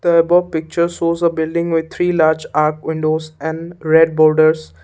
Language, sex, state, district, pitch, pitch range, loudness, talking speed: English, male, Assam, Kamrup Metropolitan, 160 Hz, 155-170 Hz, -16 LUFS, 175 wpm